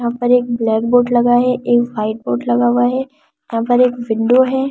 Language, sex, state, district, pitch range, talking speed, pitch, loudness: Hindi, female, Delhi, New Delhi, 225-250 Hz, 205 wpm, 240 Hz, -15 LUFS